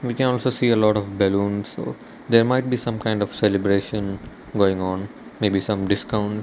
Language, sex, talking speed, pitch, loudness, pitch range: English, male, 215 wpm, 105 Hz, -22 LUFS, 100-115 Hz